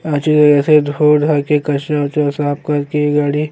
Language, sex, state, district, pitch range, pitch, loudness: Bhojpuri, male, Uttar Pradesh, Gorakhpur, 145-150 Hz, 150 Hz, -14 LUFS